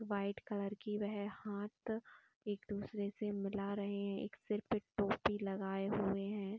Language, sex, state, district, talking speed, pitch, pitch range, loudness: Hindi, female, Uttar Pradesh, Jyotiba Phule Nagar, 165 wpm, 205 Hz, 200-210 Hz, -41 LUFS